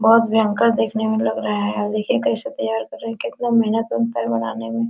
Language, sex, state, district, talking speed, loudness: Hindi, female, Bihar, Araria, 230 wpm, -20 LUFS